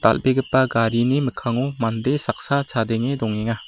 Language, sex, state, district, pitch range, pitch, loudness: Garo, male, Meghalaya, West Garo Hills, 115-135 Hz, 120 Hz, -21 LUFS